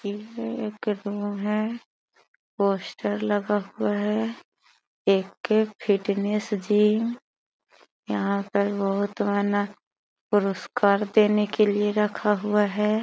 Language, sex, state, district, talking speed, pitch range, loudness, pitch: Magahi, female, Bihar, Gaya, 90 wpm, 200-215 Hz, -25 LUFS, 210 Hz